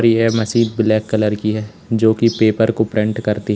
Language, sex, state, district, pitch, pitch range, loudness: Hindi, male, Uttar Pradesh, Lalitpur, 110 Hz, 105-115 Hz, -16 LUFS